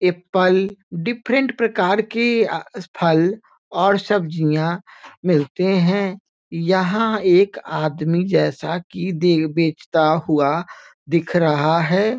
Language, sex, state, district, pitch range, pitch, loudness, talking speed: Hindi, male, Bihar, Muzaffarpur, 160-200 Hz, 180 Hz, -19 LUFS, 110 wpm